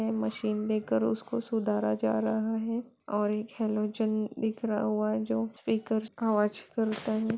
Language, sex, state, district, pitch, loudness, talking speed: Hindi, female, Bihar, Saran, 215 Hz, -30 LUFS, 145 wpm